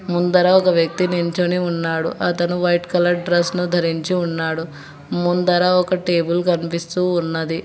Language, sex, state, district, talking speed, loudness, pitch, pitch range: Telugu, male, Telangana, Hyderabad, 135 wpm, -18 LUFS, 175 Hz, 165-180 Hz